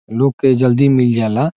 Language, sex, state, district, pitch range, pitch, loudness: Bhojpuri, male, Bihar, Saran, 120-135 Hz, 130 Hz, -14 LUFS